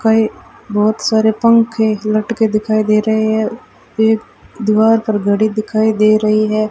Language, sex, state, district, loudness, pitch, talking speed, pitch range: Hindi, female, Rajasthan, Bikaner, -14 LUFS, 215 Hz, 150 wpm, 215-220 Hz